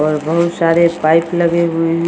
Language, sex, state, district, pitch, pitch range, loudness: Maithili, female, Bihar, Samastipur, 165 Hz, 165-170 Hz, -14 LUFS